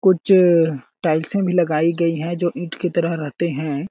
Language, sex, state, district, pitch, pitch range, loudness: Hindi, male, Chhattisgarh, Balrampur, 170 Hz, 160-175 Hz, -19 LUFS